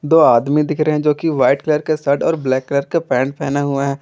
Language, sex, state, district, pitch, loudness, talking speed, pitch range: Hindi, male, Jharkhand, Garhwa, 145 Hz, -16 LUFS, 270 wpm, 140-155 Hz